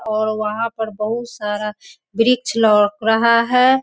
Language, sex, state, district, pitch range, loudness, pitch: Hindi, female, Bihar, Sitamarhi, 215-235 Hz, -17 LUFS, 225 Hz